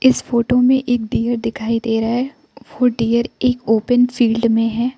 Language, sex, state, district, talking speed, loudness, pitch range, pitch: Hindi, female, Arunachal Pradesh, Lower Dibang Valley, 190 wpm, -17 LUFS, 230-250 Hz, 240 Hz